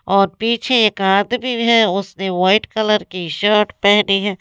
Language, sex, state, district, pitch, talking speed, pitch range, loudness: Hindi, female, Maharashtra, Gondia, 205 Hz, 165 wpm, 195-220 Hz, -16 LUFS